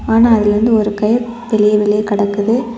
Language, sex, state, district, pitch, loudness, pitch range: Tamil, female, Tamil Nadu, Kanyakumari, 215 Hz, -14 LUFS, 210-235 Hz